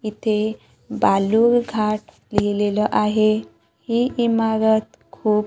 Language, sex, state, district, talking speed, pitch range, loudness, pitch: Marathi, female, Maharashtra, Gondia, 90 wpm, 210-225 Hz, -20 LUFS, 215 Hz